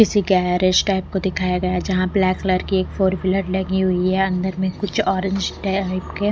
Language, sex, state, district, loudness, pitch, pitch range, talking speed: Hindi, female, Odisha, Malkangiri, -20 LUFS, 190 Hz, 185-195 Hz, 210 wpm